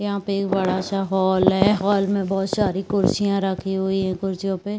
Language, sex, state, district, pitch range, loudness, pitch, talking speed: Chhattisgarhi, female, Chhattisgarh, Rajnandgaon, 190-200 Hz, -21 LUFS, 195 Hz, 215 wpm